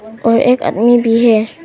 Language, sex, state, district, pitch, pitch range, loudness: Hindi, female, Arunachal Pradesh, Papum Pare, 230 Hz, 225-250 Hz, -12 LUFS